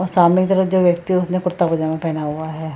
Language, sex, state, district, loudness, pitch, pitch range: Hindi, female, Bihar, Purnia, -18 LUFS, 175 Hz, 160-185 Hz